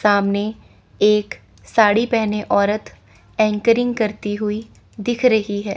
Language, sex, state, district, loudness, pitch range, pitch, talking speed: Hindi, female, Chandigarh, Chandigarh, -19 LUFS, 205-225 Hz, 210 Hz, 115 wpm